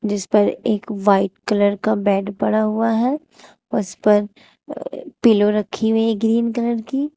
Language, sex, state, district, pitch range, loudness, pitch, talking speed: Hindi, female, Uttar Pradesh, Shamli, 205-230 Hz, -19 LUFS, 215 Hz, 160 wpm